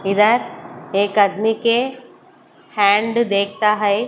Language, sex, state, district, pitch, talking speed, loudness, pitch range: Hindi, female, Haryana, Charkhi Dadri, 220 Hz, 105 wpm, -17 LUFS, 205-245 Hz